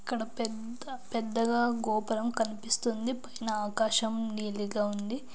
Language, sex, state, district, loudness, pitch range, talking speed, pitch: Telugu, female, Andhra Pradesh, Anantapur, -31 LUFS, 220-240 Hz, 100 wpm, 225 Hz